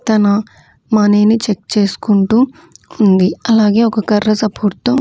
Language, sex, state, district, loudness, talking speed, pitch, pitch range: Telugu, female, Andhra Pradesh, Manyam, -13 LUFS, 130 wpm, 215 Hz, 205-230 Hz